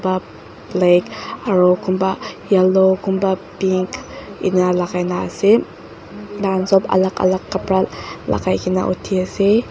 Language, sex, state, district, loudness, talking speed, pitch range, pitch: Nagamese, female, Nagaland, Dimapur, -18 LUFS, 110 wpm, 185-195 Hz, 190 Hz